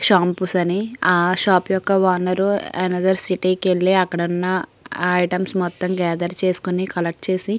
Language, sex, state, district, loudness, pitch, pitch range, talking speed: Telugu, female, Andhra Pradesh, Srikakulam, -19 LUFS, 185 Hz, 180-190 Hz, 140 wpm